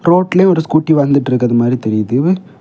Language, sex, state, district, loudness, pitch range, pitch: Tamil, male, Tamil Nadu, Kanyakumari, -13 LUFS, 125-180 Hz, 145 Hz